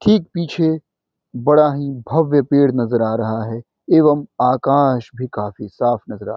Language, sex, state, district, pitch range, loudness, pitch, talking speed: Hindi, male, Bihar, Muzaffarpur, 120-150 Hz, -17 LUFS, 135 Hz, 170 wpm